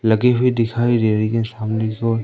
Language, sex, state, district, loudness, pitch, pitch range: Hindi, female, Madhya Pradesh, Umaria, -18 LUFS, 115 Hz, 110-120 Hz